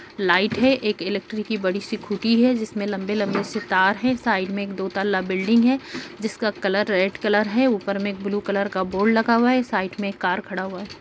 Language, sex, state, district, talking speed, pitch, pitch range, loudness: Hindi, female, Bihar, Darbhanga, 235 wpm, 205 Hz, 195-220 Hz, -22 LUFS